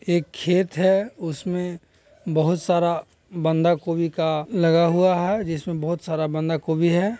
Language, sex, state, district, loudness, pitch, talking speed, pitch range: Hindi, male, Bihar, Jahanabad, -22 LUFS, 170 Hz, 150 wpm, 160-180 Hz